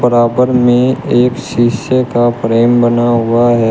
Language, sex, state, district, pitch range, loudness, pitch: Hindi, male, Uttar Pradesh, Shamli, 120-125 Hz, -11 LUFS, 120 Hz